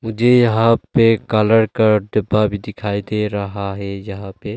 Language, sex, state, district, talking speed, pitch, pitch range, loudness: Hindi, male, Arunachal Pradesh, Longding, 170 wpm, 105 Hz, 100-110 Hz, -17 LUFS